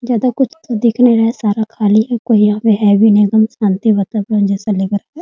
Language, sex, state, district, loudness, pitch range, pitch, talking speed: Hindi, female, Bihar, Muzaffarpur, -13 LUFS, 205-235 Hz, 220 Hz, 265 wpm